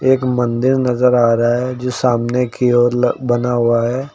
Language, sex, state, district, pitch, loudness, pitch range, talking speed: Hindi, male, Uttar Pradesh, Lucknow, 125 Hz, -15 LUFS, 120-125 Hz, 190 wpm